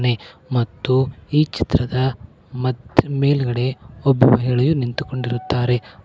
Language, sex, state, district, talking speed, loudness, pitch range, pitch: Kannada, male, Karnataka, Koppal, 80 wpm, -20 LUFS, 120-135 Hz, 125 Hz